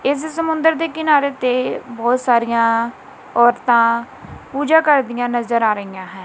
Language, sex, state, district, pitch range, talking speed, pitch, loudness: Punjabi, female, Punjab, Kapurthala, 235-290 Hz, 135 wpm, 245 Hz, -17 LUFS